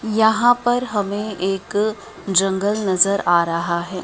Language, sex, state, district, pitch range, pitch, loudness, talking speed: Hindi, female, Madhya Pradesh, Dhar, 190-220 Hz, 200 Hz, -19 LUFS, 135 wpm